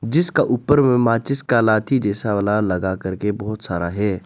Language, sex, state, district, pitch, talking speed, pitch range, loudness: Hindi, male, Arunachal Pradesh, Lower Dibang Valley, 105 Hz, 185 wpm, 100-125 Hz, -19 LUFS